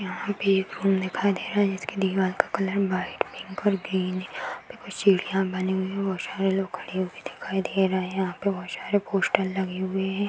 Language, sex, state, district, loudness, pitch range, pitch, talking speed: Hindi, female, Uttar Pradesh, Hamirpur, -26 LUFS, 185-195 Hz, 190 Hz, 220 wpm